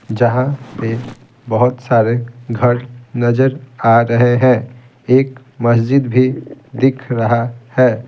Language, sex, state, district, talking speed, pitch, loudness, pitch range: Hindi, male, Bihar, Patna, 110 wpm, 125 Hz, -15 LUFS, 120-130 Hz